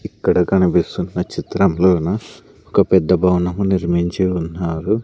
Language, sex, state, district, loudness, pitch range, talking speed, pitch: Telugu, male, Andhra Pradesh, Sri Satya Sai, -17 LUFS, 85-95 Hz, 95 wpm, 90 Hz